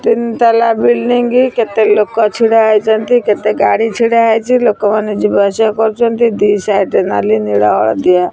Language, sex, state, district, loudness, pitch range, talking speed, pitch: Odia, female, Odisha, Khordha, -11 LUFS, 205-230 Hz, 150 wpm, 220 Hz